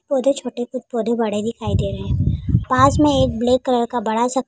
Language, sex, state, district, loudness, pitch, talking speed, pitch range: Hindi, female, Uttar Pradesh, Jalaun, -19 LUFS, 245 Hz, 240 wpm, 235-260 Hz